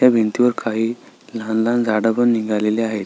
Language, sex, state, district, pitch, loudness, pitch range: Marathi, male, Maharashtra, Sindhudurg, 115 Hz, -18 LUFS, 110-120 Hz